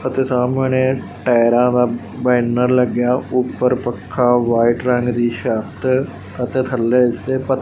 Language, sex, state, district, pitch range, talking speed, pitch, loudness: Punjabi, male, Punjab, Fazilka, 120-130 Hz, 120 wpm, 125 Hz, -17 LUFS